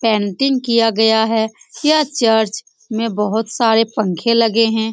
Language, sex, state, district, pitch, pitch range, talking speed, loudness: Hindi, female, Bihar, Saran, 225 Hz, 220-230 Hz, 145 wpm, -16 LUFS